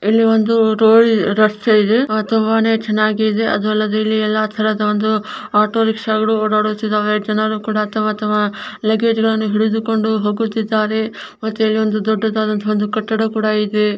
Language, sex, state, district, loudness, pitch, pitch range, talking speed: Kannada, male, Karnataka, Belgaum, -16 LUFS, 215 Hz, 215-220 Hz, 145 wpm